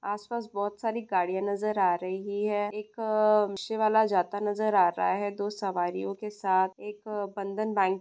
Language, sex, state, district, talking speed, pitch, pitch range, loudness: Hindi, female, Bihar, Jamui, 170 wpm, 205 Hz, 190-215 Hz, -29 LUFS